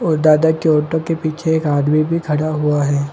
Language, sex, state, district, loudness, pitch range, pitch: Hindi, male, Chhattisgarh, Bilaspur, -16 LUFS, 150-160 Hz, 155 Hz